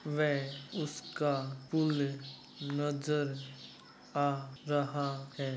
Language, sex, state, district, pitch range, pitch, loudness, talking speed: Hindi, male, Uttar Pradesh, Muzaffarnagar, 135-145 Hz, 140 Hz, -35 LUFS, 75 wpm